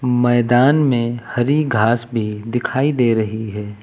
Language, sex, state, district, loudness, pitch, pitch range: Hindi, male, Uttar Pradesh, Lucknow, -17 LUFS, 120 Hz, 110-125 Hz